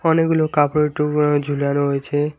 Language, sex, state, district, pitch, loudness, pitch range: Bengali, male, West Bengal, Alipurduar, 150 Hz, -18 LUFS, 145-155 Hz